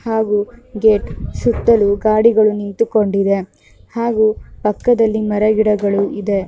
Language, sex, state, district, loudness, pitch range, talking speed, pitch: Kannada, female, Karnataka, Mysore, -15 LUFS, 205-225 Hz, 110 wpm, 215 Hz